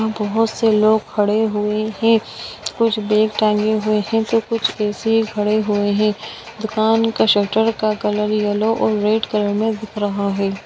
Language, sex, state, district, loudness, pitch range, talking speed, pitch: Hindi, female, Bihar, Bhagalpur, -18 LUFS, 210-220 Hz, 180 wpm, 215 Hz